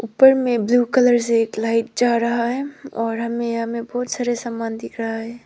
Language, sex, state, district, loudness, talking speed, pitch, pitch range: Hindi, female, Arunachal Pradesh, Papum Pare, -20 LUFS, 220 wpm, 235 Hz, 230-245 Hz